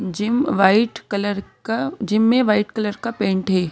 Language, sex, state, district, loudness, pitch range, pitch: Hindi, female, Madhya Pradesh, Bhopal, -19 LUFS, 200-225 Hz, 210 Hz